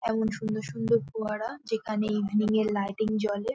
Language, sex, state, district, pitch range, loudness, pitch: Bengali, female, West Bengal, North 24 Parganas, 205-220 Hz, -29 LUFS, 215 Hz